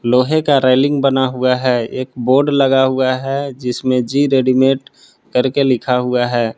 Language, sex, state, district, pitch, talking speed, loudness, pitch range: Hindi, male, Jharkhand, Palamu, 130 Hz, 155 wpm, -15 LUFS, 125-135 Hz